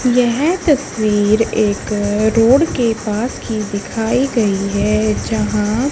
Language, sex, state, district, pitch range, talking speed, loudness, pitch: Hindi, female, Haryana, Charkhi Dadri, 210-245 Hz, 110 wpm, -16 LUFS, 220 Hz